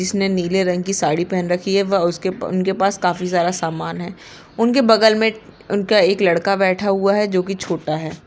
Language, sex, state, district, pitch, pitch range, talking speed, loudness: Hindi, female, Maharashtra, Aurangabad, 185 Hz, 175-200 Hz, 210 wpm, -18 LUFS